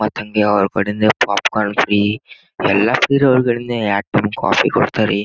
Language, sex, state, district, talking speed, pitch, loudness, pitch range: Kannada, male, Karnataka, Gulbarga, 160 wpm, 105 Hz, -16 LUFS, 105-120 Hz